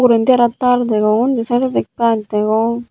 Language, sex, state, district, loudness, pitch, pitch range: Chakma, female, Tripura, Unakoti, -15 LUFS, 235 Hz, 220-245 Hz